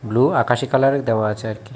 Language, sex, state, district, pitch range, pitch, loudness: Bengali, male, Tripura, West Tripura, 110-135 Hz, 120 Hz, -19 LUFS